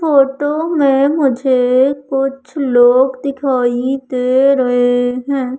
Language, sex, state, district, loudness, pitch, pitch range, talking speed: Hindi, female, Madhya Pradesh, Umaria, -14 LUFS, 270 Hz, 255-275 Hz, 95 wpm